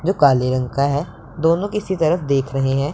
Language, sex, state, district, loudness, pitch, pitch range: Hindi, male, Punjab, Pathankot, -19 LUFS, 145 Hz, 135-170 Hz